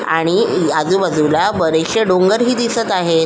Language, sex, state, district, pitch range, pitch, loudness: Marathi, female, Maharashtra, Solapur, 160-215 Hz, 180 Hz, -15 LUFS